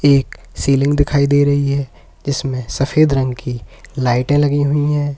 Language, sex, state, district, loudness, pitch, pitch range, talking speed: Hindi, male, Uttar Pradesh, Lalitpur, -16 LUFS, 140 Hz, 130-145 Hz, 160 wpm